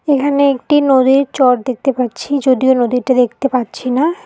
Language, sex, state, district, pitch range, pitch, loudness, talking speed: Bengali, female, West Bengal, Alipurduar, 250-280 Hz, 265 Hz, -14 LUFS, 155 wpm